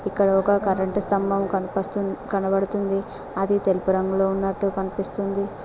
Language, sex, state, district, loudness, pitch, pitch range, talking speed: Telugu, female, Telangana, Mahabubabad, -22 LUFS, 195 Hz, 195-200 Hz, 105 wpm